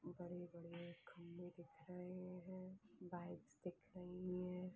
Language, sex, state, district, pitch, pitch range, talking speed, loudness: Hindi, female, Chhattisgarh, Balrampur, 180 Hz, 175-180 Hz, 125 wpm, -54 LUFS